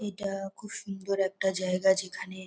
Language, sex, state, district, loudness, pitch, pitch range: Bengali, female, West Bengal, North 24 Parganas, -30 LUFS, 195 Hz, 190-195 Hz